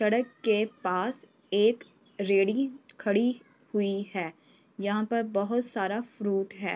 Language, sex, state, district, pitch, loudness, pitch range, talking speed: Hindi, female, Uttar Pradesh, Varanasi, 210 Hz, -29 LUFS, 200-235 Hz, 125 wpm